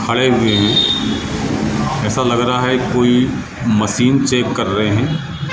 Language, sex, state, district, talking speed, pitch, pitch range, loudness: Hindi, male, Madhya Pradesh, Katni, 140 wpm, 125 Hz, 110-130 Hz, -15 LUFS